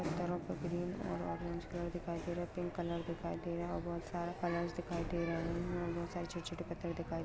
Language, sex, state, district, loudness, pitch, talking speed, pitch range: Hindi, female, Bihar, Lakhisarai, -41 LUFS, 170 Hz, 255 wpm, 170-175 Hz